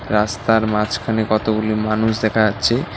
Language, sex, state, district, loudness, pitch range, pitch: Bengali, male, West Bengal, Alipurduar, -18 LUFS, 105-110 Hz, 110 Hz